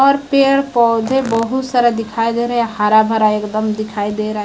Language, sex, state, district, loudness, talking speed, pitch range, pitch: Hindi, male, Chhattisgarh, Raipur, -15 LUFS, 215 wpm, 215-255 Hz, 230 Hz